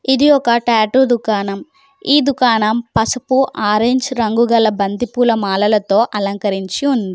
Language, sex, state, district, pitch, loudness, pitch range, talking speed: Telugu, female, Telangana, Komaram Bheem, 235 Hz, -15 LUFS, 210-260 Hz, 115 wpm